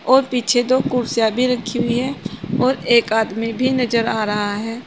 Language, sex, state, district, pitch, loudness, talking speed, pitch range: Hindi, female, Uttar Pradesh, Saharanpur, 235 Hz, -18 LUFS, 195 wpm, 225-255 Hz